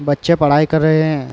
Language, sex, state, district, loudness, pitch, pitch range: Hindi, male, Uttar Pradesh, Varanasi, -14 LUFS, 155 Hz, 145-155 Hz